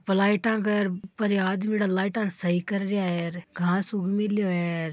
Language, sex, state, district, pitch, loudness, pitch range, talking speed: Marwari, female, Rajasthan, Churu, 195 Hz, -26 LUFS, 180-205 Hz, 205 wpm